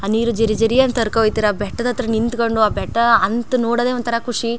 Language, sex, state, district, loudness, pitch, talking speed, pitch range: Kannada, female, Karnataka, Chamarajanagar, -17 LUFS, 230 Hz, 235 wpm, 225-240 Hz